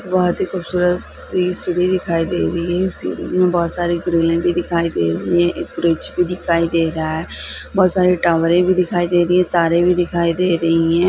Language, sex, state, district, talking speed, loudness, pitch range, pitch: Hindi, female, Bihar, Lakhisarai, 215 wpm, -17 LUFS, 170-180 Hz, 175 Hz